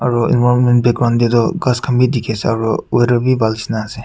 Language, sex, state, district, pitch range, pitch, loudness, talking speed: Nagamese, male, Nagaland, Kohima, 115-125 Hz, 120 Hz, -15 LUFS, 220 wpm